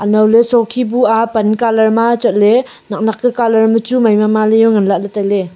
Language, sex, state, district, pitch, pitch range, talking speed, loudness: Wancho, female, Arunachal Pradesh, Longding, 220 Hz, 210-235 Hz, 215 wpm, -12 LUFS